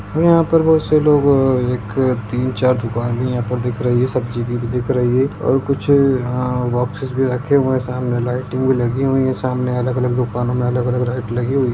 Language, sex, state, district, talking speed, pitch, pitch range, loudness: Hindi, male, Bihar, Jamui, 220 wpm, 125 Hz, 125-130 Hz, -17 LUFS